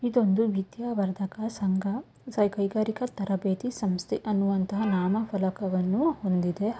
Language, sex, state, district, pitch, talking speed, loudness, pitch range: Kannada, female, Karnataka, Mysore, 200 Hz, 115 wpm, -28 LUFS, 190-225 Hz